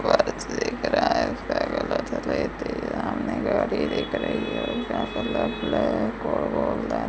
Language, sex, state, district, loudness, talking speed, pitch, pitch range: Hindi, female, Rajasthan, Bikaner, -26 LUFS, 50 wpm, 295 Hz, 285-310 Hz